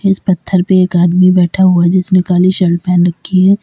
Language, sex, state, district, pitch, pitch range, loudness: Hindi, female, Uttar Pradesh, Lalitpur, 185 Hz, 175-185 Hz, -11 LUFS